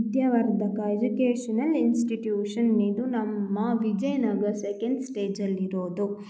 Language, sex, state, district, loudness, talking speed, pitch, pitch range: Kannada, female, Karnataka, Mysore, -26 LUFS, 105 wpm, 220 Hz, 205-240 Hz